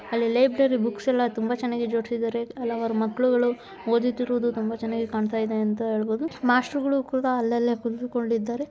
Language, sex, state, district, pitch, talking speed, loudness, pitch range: Kannada, female, Karnataka, Chamarajanagar, 235 Hz, 140 wpm, -25 LUFS, 230-245 Hz